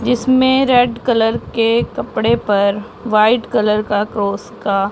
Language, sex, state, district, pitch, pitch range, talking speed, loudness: Hindi, female, Punjab, Pathankot, 225 Hz, 210-240 Hz, 135 wpm, -15 LUFS